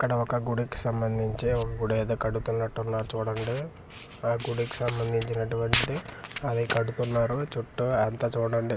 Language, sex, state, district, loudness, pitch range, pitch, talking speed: Telugu, male, Andhra Pradesh, Manyam, -29 LUFS, 115-120 Hz, 115 Hz, 115 wpm